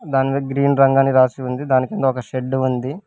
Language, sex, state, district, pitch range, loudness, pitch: Telugu, male, Telangana, Hyderabad, 130-135 Hz, -18 LUFS, 135 Hz